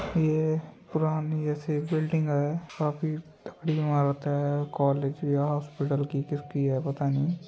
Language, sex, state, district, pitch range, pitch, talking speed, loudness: Hindi, male, Uttar Pradesh, Muzaffarnagar, 145-155 Hz, 150 Hz, 135 wpm, -28 LUFS